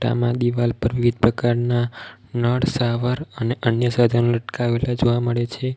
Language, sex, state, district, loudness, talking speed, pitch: Gujarati, male, Gujarat, Valsad, -21 LUFS, 145 wpm, 120 Hz